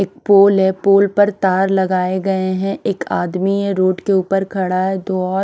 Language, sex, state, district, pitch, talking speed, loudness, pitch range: Hindi, female, Himachal Pradesh, Shimla, 190 Hz, 210 wpm, -16 LUFS, 185-195 Hz